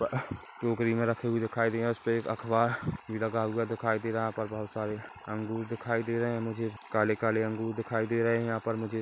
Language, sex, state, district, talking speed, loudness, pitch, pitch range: Hindi, male, Chhattisgarh, Kabirdham, 235 wpm, -31 LUFS, 115 Hz, 110-115 Hz